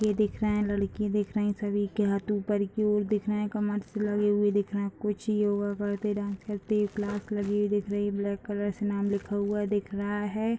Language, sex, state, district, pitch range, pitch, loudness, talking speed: Hindi, female, Bihar, Vaishali, 205-210 Hz, 205 Hz, -29 LUFS, 250 wpm